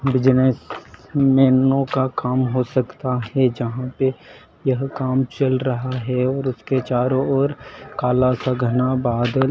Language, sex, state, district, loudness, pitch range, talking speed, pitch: Hindi, male, Madhya Pradesh, Dhar, -20 LUFS, 125-135 Hz, 140 wpm, 130 Hz